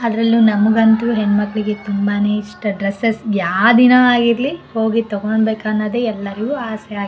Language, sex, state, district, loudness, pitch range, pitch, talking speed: Kannada, female, Karnataka, Bellary, -16 LUFS, 210-230 Hz, 220 Hz, 125 wpm